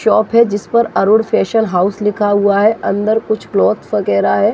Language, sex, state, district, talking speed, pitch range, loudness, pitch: Hindi, female, Chhattisgarh, Raigarh, 200 wpm, 205-225 Hz, -14 LUFS, 215 Hz